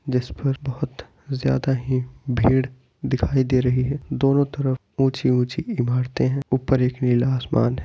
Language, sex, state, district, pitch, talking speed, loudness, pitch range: Hindi, male, Bihar, Bhagalpur, 130 Hz, 155 wpm, -22 LUFS, 125-135 Hz